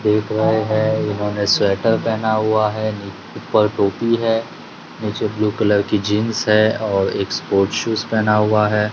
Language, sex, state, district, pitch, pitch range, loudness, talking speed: Hindi, male, Gujarat, Gandhinagar, 110 Hz, 105-110 Hz, -18 LUFS, 170 wpm